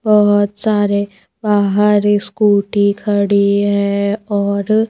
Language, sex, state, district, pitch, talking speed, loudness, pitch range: Hindi, female, Madhya Pradesh, Bhopal, 205 Hz, 85 wpm, -14 LUFS, 200-210 Hz